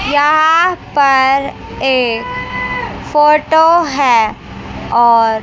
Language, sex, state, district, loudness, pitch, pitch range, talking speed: Hindi, female, Chandigarh, Chandigarh, -12 LUFS, 275 Hz, 235-310 Hz, 65 wpm